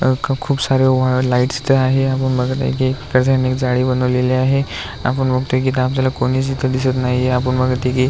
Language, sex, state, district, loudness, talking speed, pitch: Marathi, male, Maharashtra, Aurangabad, -17 LUFS, 205 wpm, 130 Hz